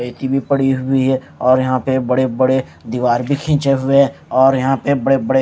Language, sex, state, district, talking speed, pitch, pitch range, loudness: Hindi, male, Punjab, Kapurthala, 210 wpm, 130 Hz, 130-135 Hz, -16 LUFS